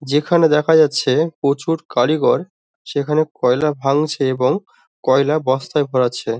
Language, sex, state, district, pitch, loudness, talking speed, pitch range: Bengali, male, West Bengal, Dakshin Dinajpur, 145 Hz, -17 LUFS, 110 wpm, 130-155 Hz